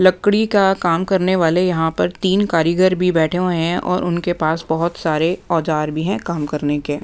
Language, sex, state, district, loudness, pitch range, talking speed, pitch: Hindi, female, Punjab, Pathankot, -18 LUFS, 160-185 Hz, 205 wpm, 170 Hz